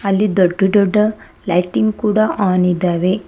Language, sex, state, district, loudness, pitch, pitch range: Kannada, female, Karnataka, Bangalore, -15 LUFS, 195 Hz, 180-210 Hz